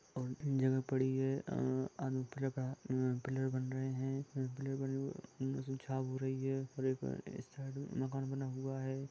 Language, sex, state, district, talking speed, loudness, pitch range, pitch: Hindi, male, Jharkhand, Sahebganj, 105 wpm, -40 LUFS, 130-135 Hz, 130 Hz